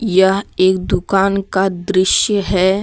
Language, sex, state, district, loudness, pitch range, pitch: Hindi, female, Jharkhand, Deoghar, -15 LUFS, 185-195 Hz, 190 Hz